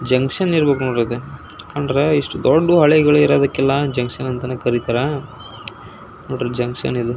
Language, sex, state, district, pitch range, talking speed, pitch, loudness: Kannada, male, Karnataka, Belgaum, 120-145 Hz, 85 wpm, 130 Hz, -17 LUFS